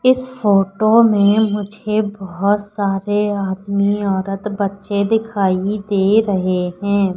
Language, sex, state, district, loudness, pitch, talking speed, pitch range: Hindi, female, Madhya Pradesh, Katni, -17 LUFS, 200 Hz, 110 wpm, 195-210 Hz